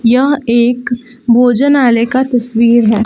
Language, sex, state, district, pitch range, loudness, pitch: Hindi, female, Jharkhand, Palamu, 235-250 Hz, -11 LUFS, 240 Hz